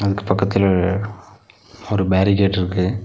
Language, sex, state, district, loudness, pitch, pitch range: Tamil, male, Tamil Nadu, Nilgiris, -18 LUFS, 100 Hz, 95-105 Hz